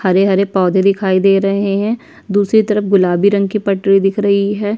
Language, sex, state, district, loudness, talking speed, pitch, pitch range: Hindi, female, Chhattisgarh, Sukma, -14 LUFS, 200 wpm, 200 Hz, 195-205 Hz